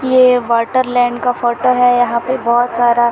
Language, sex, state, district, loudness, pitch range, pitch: Hindi, female, Chhattisgarh, Bilaspur, -13 LUFS, 240-250 Hz, 245 Hz